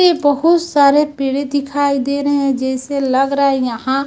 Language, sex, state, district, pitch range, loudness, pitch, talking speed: Hindi, female, Chhattisgarh, Raipur, 270-285 Hz, -15 LUFS, 280 Hz, 190 wpm